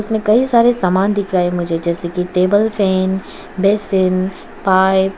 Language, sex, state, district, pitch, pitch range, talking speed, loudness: Hindi, female, Arunachal Pradesh, Papum Pare, 190 Hz, 185-205 Hz, 160 wpm, -15 LUFS